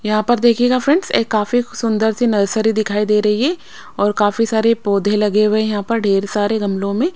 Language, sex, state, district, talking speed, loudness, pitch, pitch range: Hindi, female, Maharashtra, Mumbai Suburban, 220 wpm, -16 LUFS, 215 Hz, 205-230 Hz